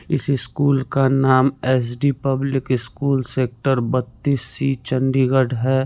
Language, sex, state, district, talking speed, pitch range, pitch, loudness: Hindi, male, Chandigarh, Chandigarh, 135 wpm, 130-135 Hz, 130 Hz, -19 LUFS